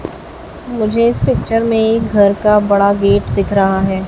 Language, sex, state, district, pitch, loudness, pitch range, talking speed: Hindi, female, Chhattisgarh, Raipur, 205 Hz, -13 LUFS, 200-225 Hz, 160 wpm